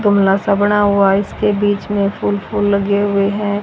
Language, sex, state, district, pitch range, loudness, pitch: Hindi, female, Haryana, Rohtak, 200-205 Hz, -15 LUFS, 205 Hz